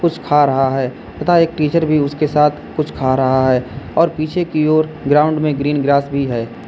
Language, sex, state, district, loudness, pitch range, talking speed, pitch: Hindi, male, Uttar Pradesh, Lalitpur, -16 LUFS, 135-155 Hz, 215 wpm, 150 Hz